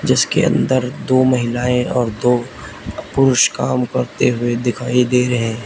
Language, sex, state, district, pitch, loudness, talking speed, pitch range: Hindi, male, Uttar Pradesh, Lalitpur, 125 Hz, -16 LUFS, 150 wpm, 120-130 Hz